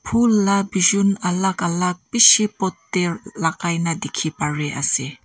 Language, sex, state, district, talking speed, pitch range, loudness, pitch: Nagamese, female, Nagaland, Kohima, 150 wpm, 165-200 Hz, -19 LUFS, 180 Hz